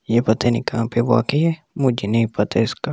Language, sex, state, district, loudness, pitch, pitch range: Hindi, male, Delhi, New Delhi, -19 LUFS, 120 Hz, 115-130 Hz